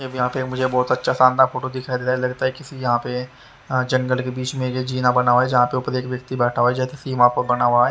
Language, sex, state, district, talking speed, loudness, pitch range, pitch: Hindi, male, Haryana, Rohtak, 295 wpm, -20 LUFS, 125-130 Hz, 130 Hz